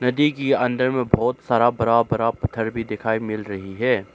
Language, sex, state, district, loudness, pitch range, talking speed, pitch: Hindi, male, Arunachal Pradesh, Lower Dibang Valley, -21 LUFS, 110-125 Hz, 200 wpm, 115 Hz